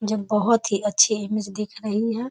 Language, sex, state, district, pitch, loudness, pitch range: Maithili, female, Bihar, Muzaffarpur, 215 Hz, -22 LUFS, 210-220 Hz